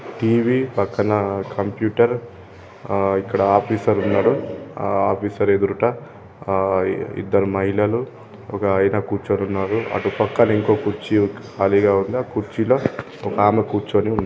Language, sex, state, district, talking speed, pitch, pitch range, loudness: Telugu, male, Telangana, Karimnagar, 120 wpm, 100 Hz, 100-110 Hz, -20 LUFS